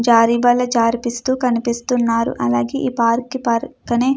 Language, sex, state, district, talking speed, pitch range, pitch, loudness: Telugu, female, Andhra Pradesh, Krishna, 130 wpm, 230-250 Hz, 235 Hz, -18 LUFS